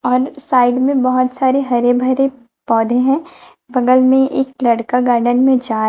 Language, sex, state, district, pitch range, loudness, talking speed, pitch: Hindi, female, Chhattisgarh, Raipur, 245-265 Hz, -15 LUFS, 165 wpm, 255 Hz